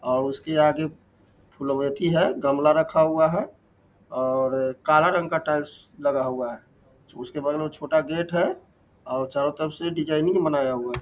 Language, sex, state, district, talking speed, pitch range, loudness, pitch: Hindi, male, Bihar, Lakhisarai, 180 wpm, 130-155 Hz, -24 LUFS, 140 Hz